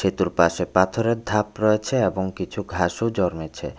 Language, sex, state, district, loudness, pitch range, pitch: Bengali, male, Tripura, West Tripura, -22 LUFS, 90-110 Hz, 95 Hz